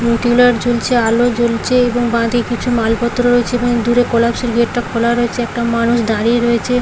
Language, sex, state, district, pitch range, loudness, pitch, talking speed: Bengali, female, West Bengal, Paschim Medinipur, 235-245 Hz, -14 LUFS, 235 Hz, 165 wpm